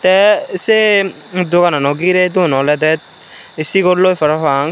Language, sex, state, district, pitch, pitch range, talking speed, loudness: Chakma, male, Tripura, Unakoti, 180 Hz, 155-185 Hz, 100 wpm, -13 LUFS